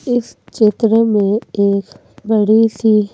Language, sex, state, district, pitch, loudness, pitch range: Hindi, female, Madhya Pradesh, Bhopal, 215 Hz, -14 LUFS, 200-225 Hz